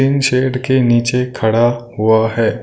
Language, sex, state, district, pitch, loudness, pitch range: Hindi, male, Punjab, Kapurthala, 120 Hz, -14 LUFS, 115-130 Hz